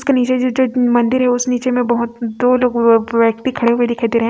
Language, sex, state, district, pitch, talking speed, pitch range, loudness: Hindi, female, Chhattisgarh, Raipur, 245 Hz, 265 wpm, 235-250 Hz, -15 LUFS